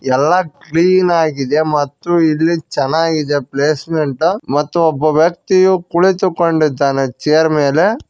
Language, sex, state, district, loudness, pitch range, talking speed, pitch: Kannada, male, Karnataka, Koppal, -14 LUFS, 145-170 Hz, 95 wpm, 155 Hz